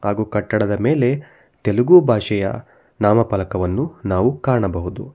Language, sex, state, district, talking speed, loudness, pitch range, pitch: Kannada, male, Karnataka, Bangalore, 95 wpm, -18 LUFS, 100-125 Hz, 110 Hz